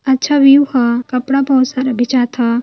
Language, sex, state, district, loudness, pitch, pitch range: Hindi, male, Uttar Pradesh, Varanasi, -13 LUFS, 255 Hz, 245-270 Hz